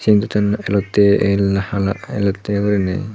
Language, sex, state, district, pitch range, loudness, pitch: Chakma, male, Tripura, Dhalai, 100-105 Hz, -17 LUFS, 100 Hz